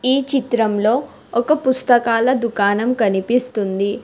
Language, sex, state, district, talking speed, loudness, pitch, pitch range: Telugu, female, Telangana, Hyderabad, 90 wpm, -17 LUFS, 235 Hz, 210-255 Hz